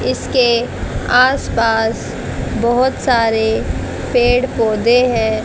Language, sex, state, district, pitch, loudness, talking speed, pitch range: Hindi, female, Haryana, Jhajjar, 230 Hz, -15 LUFS, 90 wpm, 220-245 Hz